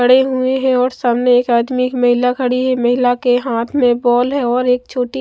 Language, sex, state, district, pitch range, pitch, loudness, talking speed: Hindi, female, Maharashtra, Mumbai Suburban, 245-255 Hz, 250 Hz, -15 LUFS, 230 wpm